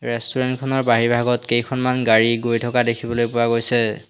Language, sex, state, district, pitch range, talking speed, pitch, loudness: Assamese, male, Assam, Hailakandi, 115-125 Hz, 160 wpm, 120 Hz, -19 LUFS